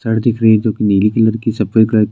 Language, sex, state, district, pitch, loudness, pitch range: Hindi, male, Uttarakhand, Tehri Garhwal, 110 Hz, -13 LUFS, 110-115 Hz